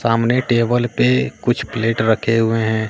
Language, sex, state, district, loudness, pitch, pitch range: Hindi, male, Bihar, Katihar, -17 LUFS, 115 Hz, 110-120 Hz